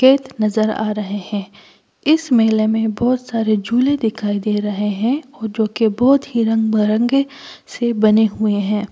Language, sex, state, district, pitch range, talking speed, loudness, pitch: Hindi, female, Delhi, New Delhi, 210-245 Hz, 170 wpm, -17 LUFS, 220 Hz